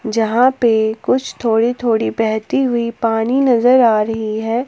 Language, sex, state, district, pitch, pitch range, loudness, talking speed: Hindi, female, Jharkhand, Palamu, 230 Hz, 220-245 Hz, -15 LUFS, 155 wpm